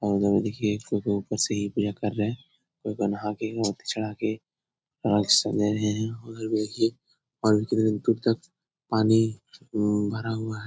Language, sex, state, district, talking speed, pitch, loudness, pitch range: Hindi, male, Bihar, Jahanabad, 165 wpm, 110 Hz, -26 LUFS, 105-115 Hz